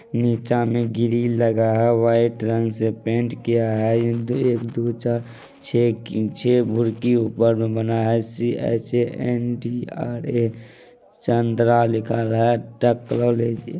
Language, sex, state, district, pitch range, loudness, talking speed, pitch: Maithili, male, Bihar, Madhepura, 115-120 Hz, -21 LUFS, 115 wpm, 115 Hz